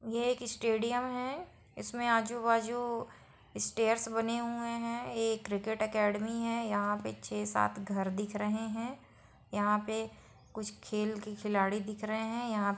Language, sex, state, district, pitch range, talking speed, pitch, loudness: Hindi, female, Bihar, Saran, 210-235 Hz, 155 wpm, 220 Hz, -34 LUFS